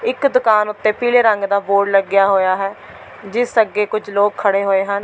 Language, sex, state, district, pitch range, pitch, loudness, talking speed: Punjabi, female, Delhi, New Delhi, 200-220 Hz, 205 Hz, -16 LUFS, 200 wpm